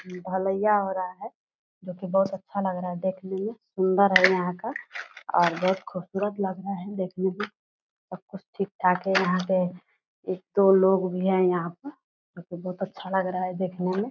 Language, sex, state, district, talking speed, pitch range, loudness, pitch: Hindi, female, Bihar, Purnia, 190 wpm, 180-195 Hz, -26 LUFS, 190 Hz